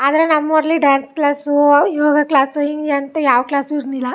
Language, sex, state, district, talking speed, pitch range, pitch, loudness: Kannada, female, Karnataka, Chamarajanagar, 160 wpm, 280-300 Hz, 290 Hz, -15 LUFS